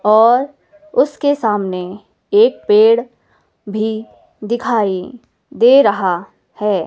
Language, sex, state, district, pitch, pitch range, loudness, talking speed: Hindi, female, Himachal Pradesh, Shimla, 220 Hz, 205-260 Hz, -15 LUFS, 85 wpm